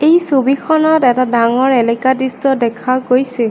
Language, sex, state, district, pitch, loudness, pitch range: Assamese, female, Assam, Kamrup Metropolitan, 260 Hz, -13 LUFS, 245-275 Hz